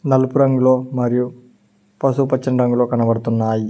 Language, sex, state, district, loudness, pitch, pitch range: Telugu, male, Telangana, Mahabubabad, -17 LUFS, 125 Hz, 115-130 Hz